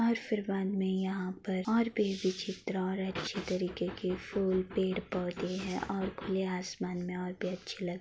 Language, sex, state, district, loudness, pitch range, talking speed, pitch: Hindi, female, Uttar Pradesh, Varanasi, -34 LUFS, 185-195 Hz, 195 wpm, 190 Hz